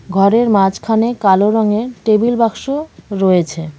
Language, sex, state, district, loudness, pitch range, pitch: Bengali, female, West Bengal, Cooch Behar, -14 LUFS, 190-230 Hz, 210 Hz